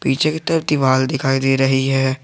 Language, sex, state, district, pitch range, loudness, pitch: Hindi, male, Jharkhand, Garhwa, 135-150 Hz, -17 LUFS, 135 Hz